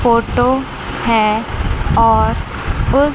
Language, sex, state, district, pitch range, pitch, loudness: Hindi, female, Chandigarh, Chandigarh, 225-260 Hz, 235 Hz, -15 LUFS